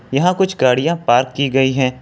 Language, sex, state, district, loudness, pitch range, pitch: Hindi, male, Jharkhand, Ranchi, -16 LUFS, 130-165 Hz, 135 Hz